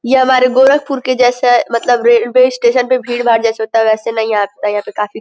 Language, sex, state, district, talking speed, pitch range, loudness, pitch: Hindi, female, Uttar Pradesh, Gorakhpur, 230 wpm, 225-255 Hz, -12 LUFS, 240 Hz